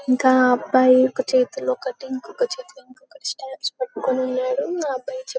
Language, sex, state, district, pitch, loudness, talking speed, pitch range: Telugu, female, Telangana, Karimnagar, 265 Hz, -21 LUFS, 155 wpm, 255-310 Hz